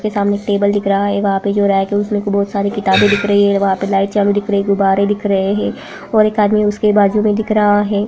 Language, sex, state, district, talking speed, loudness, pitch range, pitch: Hindi, female, Bihar, Purnia, 275 wpm, -14 LUFS, 200-205 Hz, 205 Hz